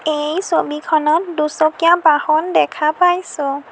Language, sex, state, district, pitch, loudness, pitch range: Assamese, female, Assam, Sonitpur, 310 Hz, -16 LUFS, 300-345 Hz